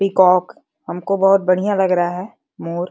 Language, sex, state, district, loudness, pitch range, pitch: Hindi, male, Uttar Pradesh, Deoria, -16 LUFS, 175-195 Hz, 185 Hz